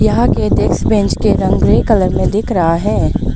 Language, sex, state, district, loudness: Hindi, female, Arunachal Pradesh, Lower Dibang Valley, -13 LUFS